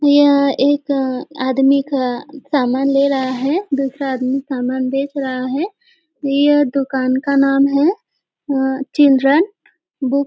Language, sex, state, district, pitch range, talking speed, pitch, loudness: Hindi, female, Maharashtra, Nagpur, 265-290 Hz, 135 wpm, 275 Hz, -16 LUFS